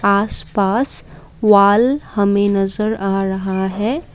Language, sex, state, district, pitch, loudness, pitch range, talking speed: Hindi, female, Assam, Kamrup Metropolitan, 200 Hz, -16 LUFS, 195-220 Hz, 115 wpm